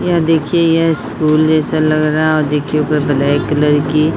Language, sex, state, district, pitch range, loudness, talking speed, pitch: Bhojpuri, female, Bihar, Saran, 150-155 Hz, -13 LUFS, 215 wpm, 155 Hz